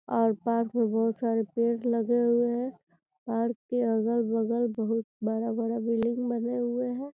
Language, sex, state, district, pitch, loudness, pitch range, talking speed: Hindi, female, Bihar, Gopalganj, 230 Hz, -28 LUFS, 225-240 Hz, 150 wpm